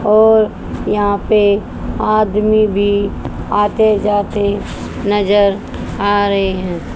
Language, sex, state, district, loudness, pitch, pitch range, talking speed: Hindi, female, Haryana, Charkhi Dadri, -15 LUFS, 205 Hz, 200-215 Hz, 95 wpm